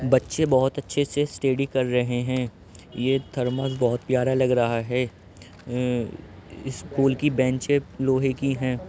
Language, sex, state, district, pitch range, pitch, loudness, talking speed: Hindi, male, Uttar Pradesh, Jyotiba Phule Nagar, 120-135 Hz, 130 Hz, -24 LUFS, 150 wpm